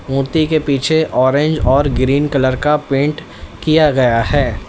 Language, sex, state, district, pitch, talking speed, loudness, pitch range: Hindi, male, Uttar Pradesh, Lalitpur, 140 Hz, 155 wpm, -14 LUFS, 130-155 Hz